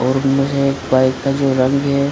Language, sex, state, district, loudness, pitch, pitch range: Hindi, male, Bihar, Supaul, -16 LUFS, 135 Hz, 130-140 Hz